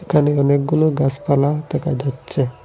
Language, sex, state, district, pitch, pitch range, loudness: Bengali, male, Assam, Hailakandi, 140 Hz, 135-150 Hz, -18 LUFS